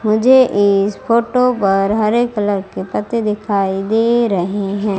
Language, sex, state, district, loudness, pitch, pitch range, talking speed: Hindi, female, Madhya Pradesh, Umaria, -15 LUFS, 210 Hz, 200-230 Hz, 145 wpm